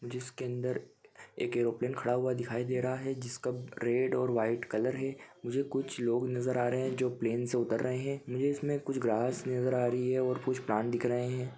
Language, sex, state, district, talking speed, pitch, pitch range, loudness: Hindi, male, Chhattisgarh, Bilaspur, 225 wpm, 125 Hz, 120-130 Hz, -33 LUFS